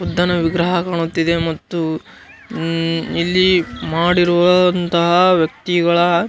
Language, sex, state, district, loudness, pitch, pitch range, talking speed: Kannada, male, Karnataka, Gulbarga, -16 LUFS, 175 Hz, 165-180 Hz, 85 wpm